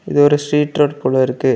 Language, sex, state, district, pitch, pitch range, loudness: Tamil, male, Tamil Nadu, Kanyakumari, 145 Hz, 130-145 Hz, -15 LUFS